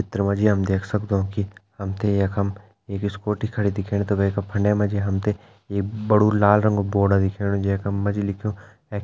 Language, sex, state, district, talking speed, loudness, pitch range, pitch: Hindi, male, Uttarakhand, Tehri Garhwal, 205 wpm, -22 LUFS, 100-105 Hz, 100 Hz